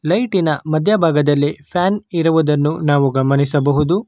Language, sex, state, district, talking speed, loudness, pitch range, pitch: Kannada, male, Karnataka, Bangalore, 90 wpm, -16 LUFS, 145-180 Hz, 155 Hz